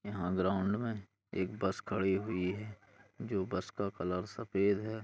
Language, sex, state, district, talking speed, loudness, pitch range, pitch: Hindi, male, Uttar Pradesh, Gorakhpur, 165 wpm, -36 LUFS, 95-105 Hz, 100 Hz